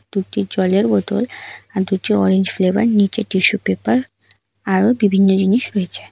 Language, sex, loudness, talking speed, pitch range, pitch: Bengali, female, -17 LUFS, 135 wpm, 190-215 Hz, 195 Hz